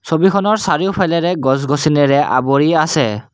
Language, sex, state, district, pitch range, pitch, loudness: Assamese, male, Assam, Kamrup Metropolitan, 140-180 Hz, 155 Hz, -14 LUFS